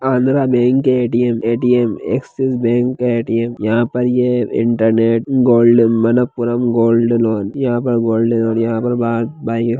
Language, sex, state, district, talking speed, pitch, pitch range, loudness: Hindi, male, Bihar, Jahanabad, 155 wpm, 120 Hz, 115-125 Hz, -15 LUFS